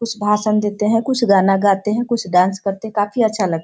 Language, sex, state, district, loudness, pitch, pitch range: Hindi, female, Bihar, Sitamarhi, -17 LUFS, 210 Hz, 195-220 Hz